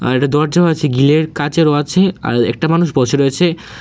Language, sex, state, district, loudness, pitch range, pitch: Bengali, male, Tripura, West Tripura, -14 LUFS, 140-170 Hz, 150 Hz